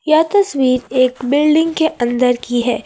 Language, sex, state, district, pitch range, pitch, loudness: Hindi, female, Jharkhand, Ranchi, 245-315 Hz, 255 Hz, -15 LUFS